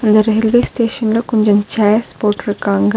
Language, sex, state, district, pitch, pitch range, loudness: Tamil, female, Tamil Nadu, Nilgiris, 215 Hz, 210-225 Hz, -14 LUFS